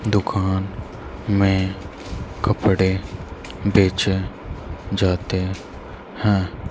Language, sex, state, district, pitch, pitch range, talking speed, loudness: Hindi, male, Haryana, Rohtak, 95 Hz, 90-100 Hz, 55 wpm, -21 LUFS